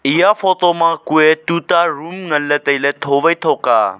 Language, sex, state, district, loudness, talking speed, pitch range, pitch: Wancho, male, Arunachal Pradesh, Longding, -14 LUFS, 195 wpm, 145-170 Hz, 165 Hz